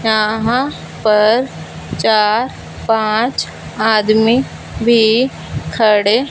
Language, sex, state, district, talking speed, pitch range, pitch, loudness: Hindi, female, Punjab, Fazilka, 75 wpm, 215-235 Hz, 220 Hz, -14 LUFS